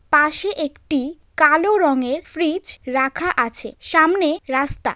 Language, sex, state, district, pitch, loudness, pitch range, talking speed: Bengali, female, West Bengal, Paschim Medinipur, 300 Hz, -18 LUFS, 270-330 Hz, 120 wpm